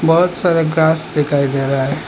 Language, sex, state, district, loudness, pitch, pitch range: Hindi, male, Assam, Hailakandi, -15 LUFS, 160 Hz, 140-165 Hz